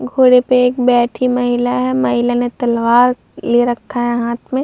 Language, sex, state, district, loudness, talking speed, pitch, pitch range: Hindi, female, Uttar Pradesh, Muzaffarnagar, -14 LUFS, 180 wpm, 245 Hz, 235-250 Hz